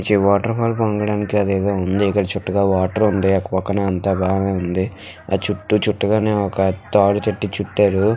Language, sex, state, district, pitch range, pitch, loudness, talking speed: Telugu, female, Andhra Pradesh, Visakhapatnam, 95-105 Hz, 100 Hz, -19 LUFS, 160 wpm